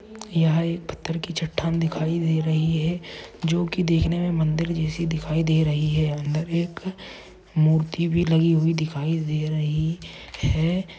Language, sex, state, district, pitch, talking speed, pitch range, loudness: Hindi, male, Maharashtra, Dhule, 165 Hz, 160 wpm, 155-170 Hz, -23 LUFS